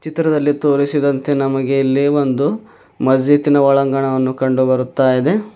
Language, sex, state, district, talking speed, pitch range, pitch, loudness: Kannada, male, Karnataka, Bidar, 95 wpm, 130-145 Hz, 140 Hz, -15 LUFS